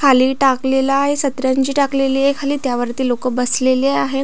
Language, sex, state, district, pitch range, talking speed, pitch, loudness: Marathi, female, Maharashtra, Pune, 255-275 Hz, 155 wpm, 265 Hz, -16 LUFS